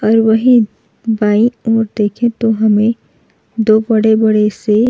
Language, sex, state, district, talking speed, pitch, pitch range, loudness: Hindi, female, Uttar Pradesh, Jalaun, 135 wpm, 220 Hz, 215-225 Hz, -13 LUFS